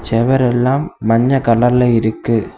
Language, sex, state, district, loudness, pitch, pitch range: Tamil, male, Tamil Nadu, Kanyakumari, -14 LUFS, 120 Hz, 115-130 Hz